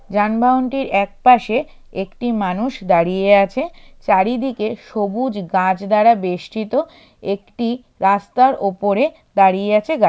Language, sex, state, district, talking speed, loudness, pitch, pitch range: Bengali, male, West Bengal, Jalpaiguri, 100 wpm, -17 LUFS, 210 Hz, 195-250 Hz